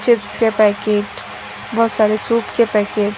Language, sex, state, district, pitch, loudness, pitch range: Hindi, female, Bihar, Sitamarhi, 215 Hz, -16 LUFS, 210-230 Hz